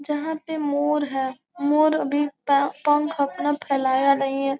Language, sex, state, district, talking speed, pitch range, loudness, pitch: Hindi, female, Bihar, Gopalganj, 145 wpm, 275-300 Hz, -23 LUFS, 290 Hz